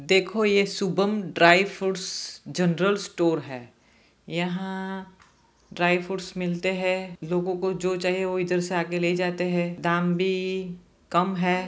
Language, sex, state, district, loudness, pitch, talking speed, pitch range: Hindi, male, Jharkhand, Jamtara, -25 LUFS, 185 Hz, 145 wpm, 175-190 Hz